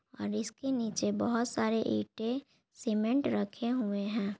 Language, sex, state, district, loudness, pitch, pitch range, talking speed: Hindi, female, Bihar, Gaya, -33 LUFS, 225 Hz, 210-240 Hz, 135 wpm